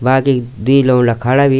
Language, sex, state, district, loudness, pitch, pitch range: Garhwali, male, Uttarakhand, Tehri Garhwal, -13 LUFS, 130 Hz, 125-135 Hz